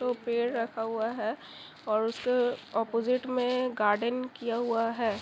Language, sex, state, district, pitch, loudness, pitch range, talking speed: Hindi, female, Chhattisgarh, Bilaspur, 235 Hz, -30 LUFS, 225-250 Hz, 150 wpm